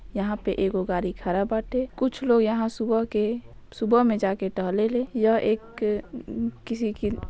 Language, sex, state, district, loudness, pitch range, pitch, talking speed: Bhojpuri, female, Bihar, Saran, -25 LUFS, 200-230 Hz, 220 Hz, 175 wpm